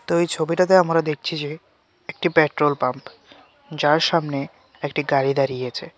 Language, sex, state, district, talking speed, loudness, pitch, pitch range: Bengali, male, Tripura, West Tripura, 150 wpm, -21 LUFS, 155 Hz, 140-170 Hz